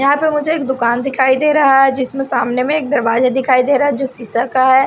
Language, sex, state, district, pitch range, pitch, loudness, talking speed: Hindi, female, Odisha, Sambalpur, 255-280 Hz, 265 Hz, -14 LUFS, 270 wpm